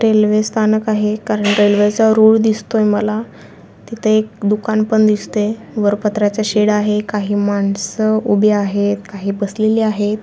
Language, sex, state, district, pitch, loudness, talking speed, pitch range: Marathi, female, Maharashtra, Sindhudurg, 210 Hz, -15 LUFS, 135 wpm, 205-215 Hz